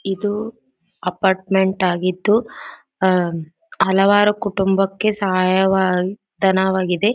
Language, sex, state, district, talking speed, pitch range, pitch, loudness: Kannada, female, Karnataka, Gulbarga, 65 wpm, 185-205 Hz, 190 Hz, -18 LUFS